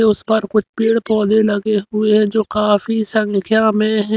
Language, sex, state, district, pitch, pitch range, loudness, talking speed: Hindi, male, Haryana, Rohtak, 215 Hz, 210-220 Hz, -16 LUFS, 170 wpm